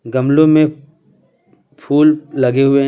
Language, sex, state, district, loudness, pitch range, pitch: Hindi, male, Bihar, Patna, -13 LUFS, 135-155 Hz, 145 Hz